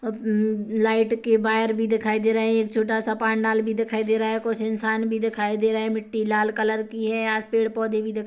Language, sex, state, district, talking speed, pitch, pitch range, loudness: Hindi, female, Chhattisgarh, Kabirdham, 255 wpm, 220 Hz, 220-225 Hz, -23 LUFS